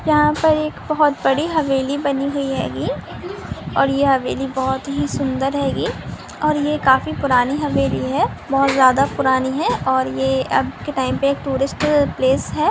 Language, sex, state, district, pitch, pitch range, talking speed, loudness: Hindi, female, Rajasthan, Nagaur, 275 Hz, 260-295 Hz, 180 wpm, -18 LUFS